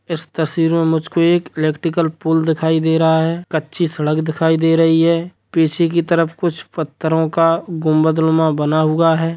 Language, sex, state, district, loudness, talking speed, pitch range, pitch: Hindi, male, Bihar, Sitamarhi, -16 LUFS, 180 wpm, 160-165 Hz, 160 Hz